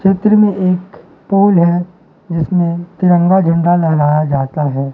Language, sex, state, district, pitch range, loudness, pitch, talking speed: Hindi, male, Madhya Pradesh, Katni, 160-190 Hz, -13 LUFS, 175 Hz, 135 wpm